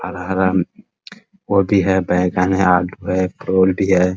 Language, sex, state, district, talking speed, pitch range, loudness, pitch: Hindi, male, Bihar, Muzaffarpur, 130 wpm, 90-95 Hz, -17 LUFS, 95 Hz